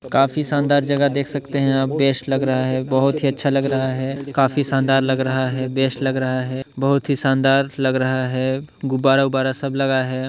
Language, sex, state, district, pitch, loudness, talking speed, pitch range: Hindi, male, Chhattisgarh, Sarguja, 135 Hz, -19 LUFS, 215 wpm, 130-140 Hz